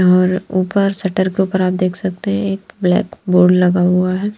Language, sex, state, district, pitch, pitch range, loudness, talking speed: Hindi, female, Bihar, Patna, 185 Hz, 180-195 Hz, -16 LUFS, 205 wpm